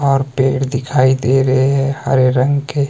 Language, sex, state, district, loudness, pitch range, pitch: Hindi, male, Himachal Pradesh, Shimla, -15 LUFS, 130-140 Hz, 135 Hz